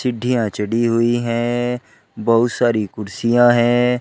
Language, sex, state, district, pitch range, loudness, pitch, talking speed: Hindi, male, Uttar Pradesh, Shamli, 115-120 Hz, -17 LUFS, 120 Hz, 120 wpm